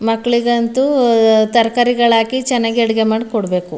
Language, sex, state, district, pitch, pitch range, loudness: Kannada, female, Karnataka, Mysore, 230 Hz, 225-240 Hz, -14 LUFS